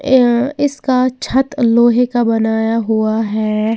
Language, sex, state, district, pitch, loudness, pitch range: Hindi, female, Uttar Pradesh, Lalitpur, 240 Hz, -14 LUFS, 220-260 Hz